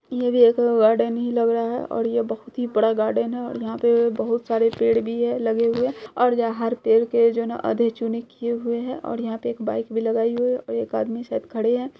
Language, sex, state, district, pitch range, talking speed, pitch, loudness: Hindi, female, Bihar, Purnia, 230-240 Hz, 260 wpm, 235 Hz, -22 LUFS